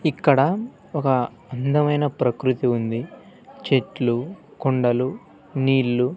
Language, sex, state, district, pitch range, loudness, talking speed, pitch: Telugu, male, Andhra Pradesh, Sri Satya Sai, 125-145 Hz, -22 LUFS, 80 wpm, 130 Hz